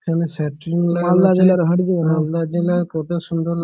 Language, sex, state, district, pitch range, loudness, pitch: Bengali, male, West Bengal, Malda, 165-175 Hz, -18 LUFS, 170 Hz